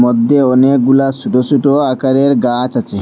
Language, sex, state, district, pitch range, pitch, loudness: Bengali, male, Assam, Hailakandi, 125-140 Hz, 130 Hz, -12 LUFS